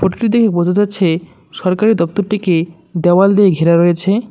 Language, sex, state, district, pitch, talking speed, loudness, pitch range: Bengali, male, West Bengal, Cooch Behar, 185 Hz, 155 wpm, -14 LUFS, 170-205 Hz